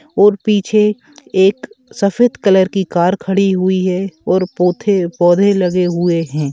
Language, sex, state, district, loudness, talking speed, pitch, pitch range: Bhojpuri, male, Uttar Pradesh, Gorakhpur, -14 LUFS, 145 wpm, 190 Hz, 180-205 Hz